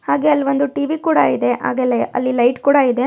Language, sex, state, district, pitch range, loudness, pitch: Kannada, female, Karnataka, Mysore, 255-285 Hz, -16 LUFS, 275 Hz